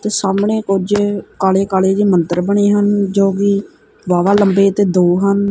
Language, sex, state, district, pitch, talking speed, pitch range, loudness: Punjabi, male, Punjab, Kapurthala, 200 Hz, 165 wpm, 190-205 Hz, -14 LUFS